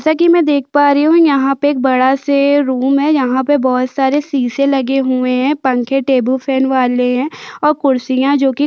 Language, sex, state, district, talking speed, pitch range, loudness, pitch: Hindi, female, Chhattisgarh, Jashpur, 210 wpm, 260-285 Hz, -13 LUFS, 270 Hz